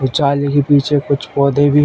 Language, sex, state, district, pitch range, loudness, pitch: Hindi, male, Uttar Pradesh, Ghazipur, 140-145 Hz, -14 LUFS, 140 Hz